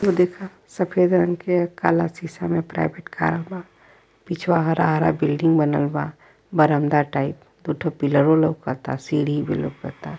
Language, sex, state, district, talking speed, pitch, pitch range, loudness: Bhojpuri, female, Uttar Pradesh, Varanasi, 145 wpm, 160 Hz, 150-175 Hz, -21 LUFS